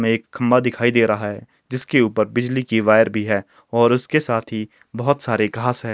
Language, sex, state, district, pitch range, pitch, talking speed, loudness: Hindi, male, Himachal Pradesh, Shimla, 110-125 Hz, 115 Hz, 220 wpm, -19 LUFS